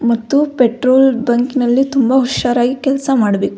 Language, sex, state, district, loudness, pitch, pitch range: Kannada, female, Karnataka, Belgaum, -14 LUFS, 255 Hz, 240-270 Hz